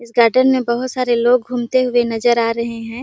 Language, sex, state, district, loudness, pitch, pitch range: Hindi, female, Chhattisgarh, Sarguja, -16 LUFS, 240 Hz, 235-255 Hz